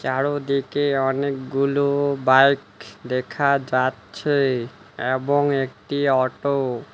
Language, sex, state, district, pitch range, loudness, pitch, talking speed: Bengali, male, West Bengal, Alipurduar, 130-140 Hz, -21 LUFS, 135 Hz, 80 wpm